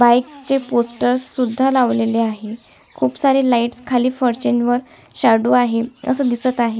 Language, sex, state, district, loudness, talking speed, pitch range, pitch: Marathi, female, Maharashtra, Sindhudurg, -17 LUFS, 150 wpm, 235-255 Hz, 245 Hz